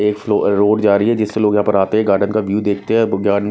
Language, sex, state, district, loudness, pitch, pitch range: Hindi, male, Chhattisgarh, Raipur, -15 LUFS, 105 Hz, 100-110 Hz